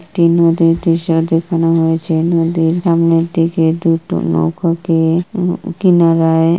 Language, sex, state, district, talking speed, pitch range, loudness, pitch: Bengali, female, West Bengal, Kolkata, 110 wpm, 165-170 Hz, -14 LUFS, 165 Hz